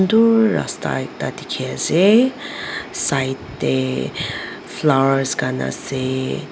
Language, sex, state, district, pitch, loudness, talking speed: Nagamese, female, Nagaland, Dimapur, 135 Hz, -19 LUFS, 90 wpm